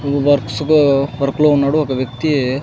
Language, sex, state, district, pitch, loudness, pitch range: Telugu, male, Andhra Pradesh, Sri Satya Sai, 140 Hz, -15 LUFS, 135-145 Hz